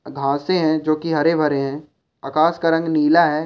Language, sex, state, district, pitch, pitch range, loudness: Hindi, male, Rajasthan, Churu, 155 Hz, 145-165 Hz, -19 LUFS